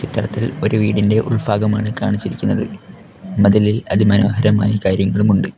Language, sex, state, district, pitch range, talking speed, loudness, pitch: Malayalam, male, Kerala, Kollam, 100-110 Hz, 120 wpm, -16 LUFS, 105 Hz